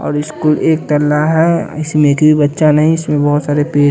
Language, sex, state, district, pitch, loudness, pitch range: Hindi, male, Bihar, West Champaran, 150 Hz, -12 LUFS, 145-155 Hz